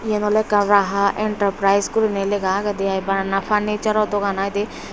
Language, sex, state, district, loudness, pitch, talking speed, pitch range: Chakma, female, Tripura, Dhalai, -19 LUFS, 205 Hz, 195 wpm, 195-210 Hz